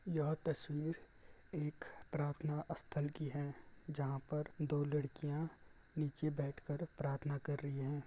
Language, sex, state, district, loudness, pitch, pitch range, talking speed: Hindi, male, Uttar Pradesh, Varanasi, -42 LUFS, 150 Hz, 145-155 Hz, 135 wpm